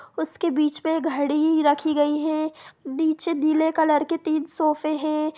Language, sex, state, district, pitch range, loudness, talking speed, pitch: Hindi, female, Bihar, Sitamarhi, 300-320 Hz, -23 LUFS, 155 wpm, 310 Hz